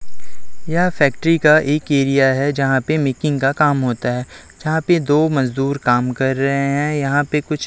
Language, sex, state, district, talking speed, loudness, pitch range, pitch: Hindi, male, Chhattisgarh, Raipur, 185 wpm, -17 LUFS, 130-150 Hz, 140 Hz